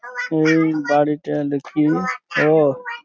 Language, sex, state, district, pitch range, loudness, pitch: Bengali, male, West Bengal, Dakshin Dinajpur, 150-185 Hz, -18 LUFS, 155 Hz